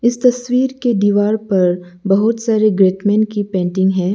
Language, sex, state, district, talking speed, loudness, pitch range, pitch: Hindi, male, Arunachal Pradesh, Lower Dibang Valley, 175 wpm, -15 LUFS, 190-230 Hz, 205 Hz